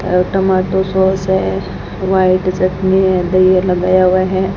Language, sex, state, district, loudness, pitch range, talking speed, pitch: Hindi, female, Rajasthan, Bikaner, -13 LUFS, 185-190 Hz, 160 wpm, 185 Hz